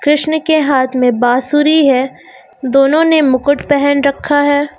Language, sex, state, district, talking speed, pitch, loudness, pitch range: Hindi, female, Uttar Pradesh, Lucknow, 150 wpm, 285 Hz, -12 LUFS, 265-295 Hz